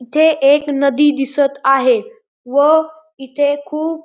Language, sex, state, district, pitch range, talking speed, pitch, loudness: Marathi, male, Maharashtra, Pune, 280-315 Hz, 120 wpm, 290 Hz, -14 LUFS